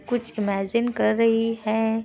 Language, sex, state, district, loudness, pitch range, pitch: Hindi, female, Bihar, Kishanganj, -23 LUFS, 215-235 Hz, 225 Hz